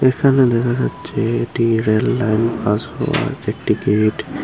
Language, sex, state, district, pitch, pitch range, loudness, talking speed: Bengali, female, Tripura, Unakoti, 115 Hz, 110-125 Hz, -18 LUFS, 110 wpm